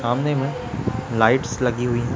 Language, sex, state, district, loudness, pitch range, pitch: Hindi, male, Chhattisgarh, Raipur, -22 LUFS, 120-130 Hz, 125 Hz